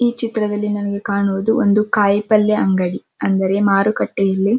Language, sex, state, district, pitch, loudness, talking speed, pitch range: Kannada, female, Karnataka, Dharwad, 205 Hz, -17 LUFS, 145 wpm, 195-215 Hz